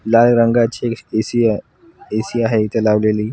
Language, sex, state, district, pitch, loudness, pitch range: Marathi, male, Maharashtra, Washim, 115 Hz, -16 LUFS, 110-120 Hz